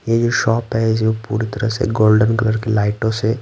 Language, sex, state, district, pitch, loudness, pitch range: Hindi, male, Bihar, Patna, 110 Hz, -17 LUFS, 110-115 Hz